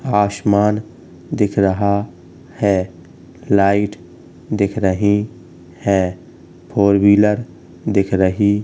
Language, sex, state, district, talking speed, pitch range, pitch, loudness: Hindi, male, Uttar Pradesh, Hamirpur, 85 wpm, 90-105 Hz, 100 Hz, -17 LUFS